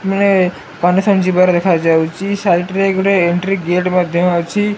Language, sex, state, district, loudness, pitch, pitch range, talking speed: Odia, male, Odisha, Malkangiri, -14 LUFS, 185 Hz, 175-195 Hz, 140 wpm